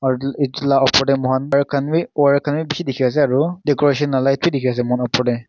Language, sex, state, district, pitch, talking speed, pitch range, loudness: Nagamese, male, Nagaland, Kohima, 135 Hz, 230 wpm, 130-145 Hz, -18 LUFS